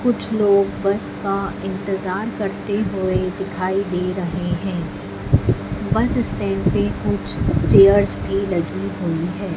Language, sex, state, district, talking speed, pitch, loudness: Hindi, female, Madhya Pradesh, Dhar, 125 wpm, 185 Hz, -20 LUFS